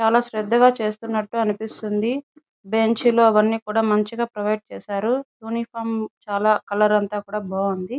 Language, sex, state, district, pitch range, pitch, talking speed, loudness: Telugu, female, Andhra Pradesh, Chittoor, 210-230 Hz, 220 Hz, 130 wpm, -21 LUFS